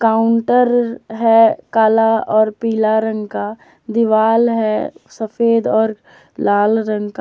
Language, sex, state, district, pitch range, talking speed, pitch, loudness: Hindi, female, Jharkhand, Deoghar, 220-230 Hz, 115 wpm, 225 Hz, -15 LUFS